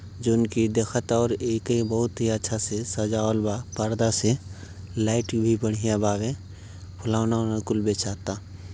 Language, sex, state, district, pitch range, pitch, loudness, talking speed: Bhojpuri, male, Uttar Pradesh, Gorakhpur, 105-115 Hz, 110 Hz, -25 LUFS, 145 wpm